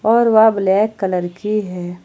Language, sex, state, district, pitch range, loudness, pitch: Hindi, female, Jharkhand, Ranchi, 180-220 Hz, -16 LUFS, 205 Hz